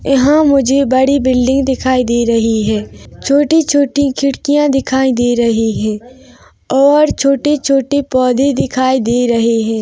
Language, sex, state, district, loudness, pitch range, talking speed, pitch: Hindi, female, Chhattisgarh, Rajnandgaon, -12 LUFS, 240-280 Hz, 155 wpm, 265 Hz